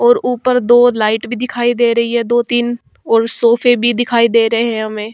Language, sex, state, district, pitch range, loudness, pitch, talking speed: Hindi, female, Bihar, Vaishali, 230-240 Hz, -13 LUFS, 240 Hz, 220 wpm